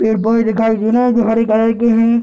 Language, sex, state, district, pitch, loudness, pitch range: Hindi, male, Bihar, Darbhanga, 225 Hz, -14 LUFS, 220-230 Hz